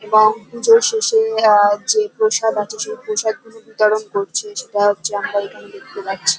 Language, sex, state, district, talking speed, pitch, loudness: Bengali, female, West Bengal, North 24 Parganas, 170 wpm, 220 Hz, -17 LUFS